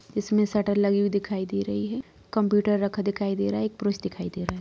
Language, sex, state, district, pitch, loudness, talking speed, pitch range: Hindi, female, Bihar, Muzaffarpur, 200 Hz, -26 LUFS, 275 wpm, 190-210 Hz